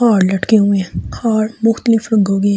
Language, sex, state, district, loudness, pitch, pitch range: Hindi, female, Delhi, New Delhi, -15 LUFS, 215 Hz, 200-225 Hz